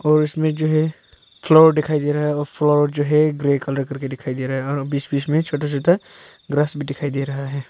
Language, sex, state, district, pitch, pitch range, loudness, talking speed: Hindi, male, Arunachal Pradesh, Papum Pare, 145 Hz, 140-150 Hz, -19 LUFS, 250 wpm